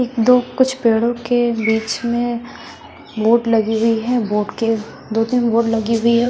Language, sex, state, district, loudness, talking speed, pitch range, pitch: Hindi, female, Odisha, Sambalpur, -17 LUFS, 180 wpm, 225-240 Hz, 230 Hz